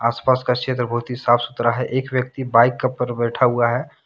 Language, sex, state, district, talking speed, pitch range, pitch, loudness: Hindi, male, Jharkhand, Deoghar, 235 wpm, 120-130 Hz, 125 Hz, -20 LUFS